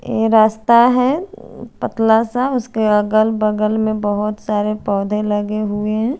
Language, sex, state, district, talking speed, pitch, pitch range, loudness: Hindi, female, Chandigarh, Chandigarh, 145 wpm, 215 Hz, 210-225 Hz, -16 LUFS